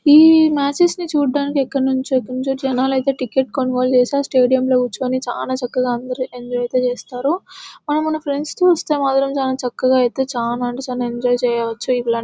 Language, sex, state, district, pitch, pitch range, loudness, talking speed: Telugu, female, Telangana, Nalgonda, 260 Hz, 250-280 Hz, -18 LUFS, 170 wpm